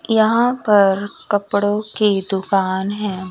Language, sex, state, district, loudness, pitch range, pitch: Hindi, female, Chandigarh, Chandigarh, -18 LUFS, 195-215 Hz, 205 Hz